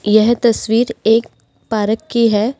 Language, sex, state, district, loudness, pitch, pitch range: Hindi, female, Delhi, New Delhi, -15 LUFS, 225 Hz, 215-235 Hz